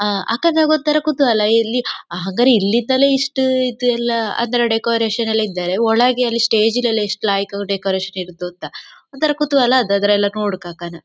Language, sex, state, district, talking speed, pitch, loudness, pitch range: Kannada, female, Karnataka, Dakshina Kannada, 155 wpm, 230 Hz, -17 LUFS, 200-255 Hz